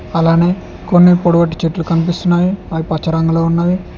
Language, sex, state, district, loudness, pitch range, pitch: Telugu, male, Telangana, Hyderabad, -14 LUFS, 165-175 Hz, 170 Hz